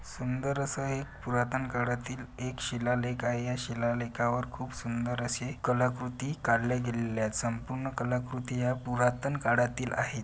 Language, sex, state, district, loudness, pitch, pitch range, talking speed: Marathi, male, Maharashtra, Pune, -32 LUFS, 125 Hz, 120-130 Hz, 130 wpm